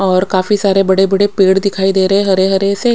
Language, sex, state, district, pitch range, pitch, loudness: Hindi, female, Odisha, Khordha, 190-200 Hz, 195 Hz, -12 LUFS